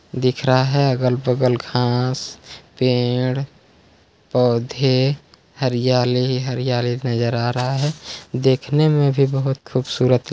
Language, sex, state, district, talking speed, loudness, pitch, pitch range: Hindi, male, Chhattisgarh, Balrampur, 115 wpm, -19 LUFS, 125 Hz, 125-135 Hz